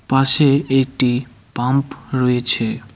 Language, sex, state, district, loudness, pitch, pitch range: Bengali, male, West Bengal, Cooch Behar, -17 LUFS, 130 Hz, 120-135 Hz